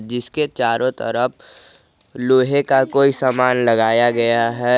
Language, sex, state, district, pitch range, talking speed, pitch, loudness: Hindi, male, Jharkhand, Garhwa, 115-130 Hz, 125 wpm, 125 Hz, -17 LUFS